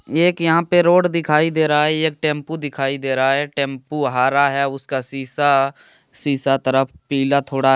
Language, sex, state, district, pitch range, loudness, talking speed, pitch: Hindi, male, Jharkhand, Deoghar, 135-155 Hz, -18 LUFS, 180 wpm, 140 Hz